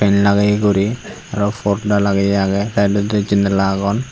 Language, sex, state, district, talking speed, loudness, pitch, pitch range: Chakma, male, Tripura, Unakoti, 130 wpm, -16 LUFS, 100 Hz, 100-105 Hz